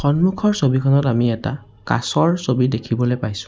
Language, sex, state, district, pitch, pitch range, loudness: Assamese, male, Assam, Sonitpur, 130 Hz, 120-145 Hz, -19 LUFS